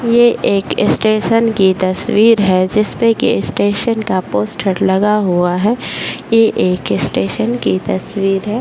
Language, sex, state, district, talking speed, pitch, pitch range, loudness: Hindi, female, Bihar, Bhagalpur, 155 wpm, 210 Hz, 190-225 Hz, -14 LUFS